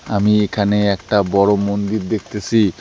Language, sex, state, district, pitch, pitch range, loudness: Bengali, male, West Bengal, Alipurduar, 100 Hz, 100-105 Hz, -17 LUFS